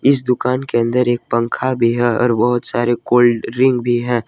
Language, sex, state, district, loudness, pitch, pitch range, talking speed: Hindi, male, Jharkhand, Ranchi, -16 LUFS, 120 Hz, 120-125 Hz, 225 wpm